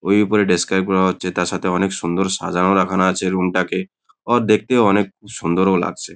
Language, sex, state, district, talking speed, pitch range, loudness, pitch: Bengali, male, West Bengal, Kolkata, 185 wpm, 90-100 Hz, -18 LUFS, 95 Hz